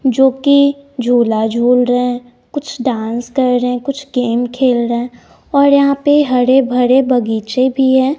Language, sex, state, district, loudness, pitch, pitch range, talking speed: Hindi, female, Bihar, West Champaran, -13 LUFS, 250 Hz, 245-270 Hz, 145 wpm